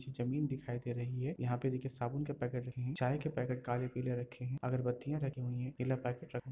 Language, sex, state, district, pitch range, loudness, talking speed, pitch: Hindi, female, Bihar, Darbhanga, 125-135 Hz, -39 LUFS, 250 wpm, 125 Hz